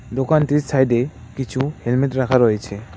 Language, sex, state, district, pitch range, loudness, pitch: Bengali, male, West Bengal, Cooch Behar, 120-135 Hz, -19 LUFS, 130 Hz